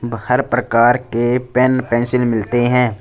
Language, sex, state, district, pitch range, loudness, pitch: Hindi, male, Punjab, Fazilka, 115-125 Hz, -16 LUFS, 120 Hz